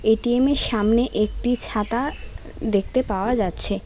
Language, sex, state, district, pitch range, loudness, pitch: Bengali, female, West Bengal, Alipurduar, 210-245 Hz, -19 LUFS, 230 Hz